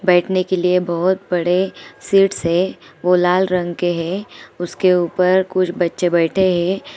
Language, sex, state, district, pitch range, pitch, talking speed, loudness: Hindi, female, Bihar, Gopalganj, 175-185 Hz, 180 Hz, 155 wpm, -17 LUFS